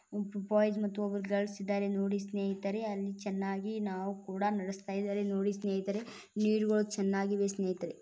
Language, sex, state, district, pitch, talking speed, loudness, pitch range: Kannada, female, Karnataka, Bijapur, 200 Hz, 140 wpm, -34 LUFS, 195-205 Hz